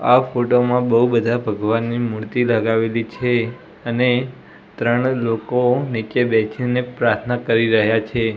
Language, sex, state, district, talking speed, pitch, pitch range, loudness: Gujarati, male, Gujarat, Gandhinagar, 130 wpm, 120 Hz, 115-125 Hz, -19 LUFS